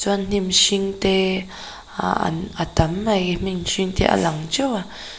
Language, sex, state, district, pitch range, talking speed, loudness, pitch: Mizo, female, Mizoram, Aizawl, 180-200 Hz, 175 wpm, -20 LUFS, 190 Hz